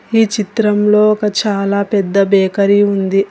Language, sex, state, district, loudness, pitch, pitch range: Telugu, female, Telangana, Hyderabad, -13 LUFS, 205 Hz, 200-210 Hz